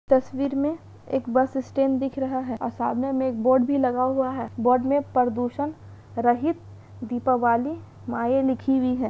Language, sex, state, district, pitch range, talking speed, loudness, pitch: Hindi, female, Chhattisgarh, Raigarh, 245-270 Hz, 165 wpm, -24 LUFS, 260 Hz